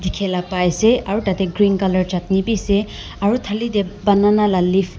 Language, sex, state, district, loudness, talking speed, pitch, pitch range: Nagamese, female, Nagaland, Dimapur, -18 LUFS, 190 wpm, 195 Hz, 185-210 Hz